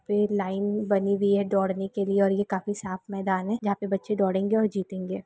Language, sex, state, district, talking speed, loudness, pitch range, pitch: Hindi, female, West Bengal, Purulia, 230 wpm, -26 LUFS, 195-205 Hz, 200 Hz